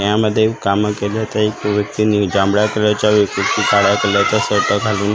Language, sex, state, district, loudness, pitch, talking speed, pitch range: Marathi, male, Maharashtra, Gondia, -15 LUFS, 105 Hz, 150 wpm, 100-105 Hz